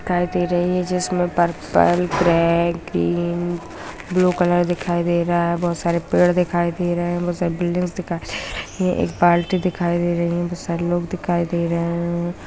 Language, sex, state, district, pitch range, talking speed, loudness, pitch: Hindi, female, Bihar, Muzaffarpur, 170-175 Hz, 200 wpm, -20 LUFS, 175 Hz